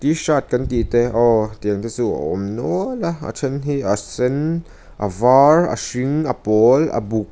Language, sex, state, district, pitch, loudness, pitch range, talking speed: Mizo, male, Mizoram, Aizawl, 125 Hz, -18 LUFS, 110-145 Hz, 205 wpm